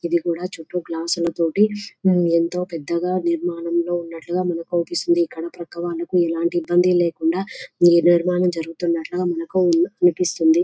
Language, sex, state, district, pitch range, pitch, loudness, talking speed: Telugu, female, Telangana, Nalgonda, 170-180 Hz, 175 Hz, -20 LUFS, 120 wpm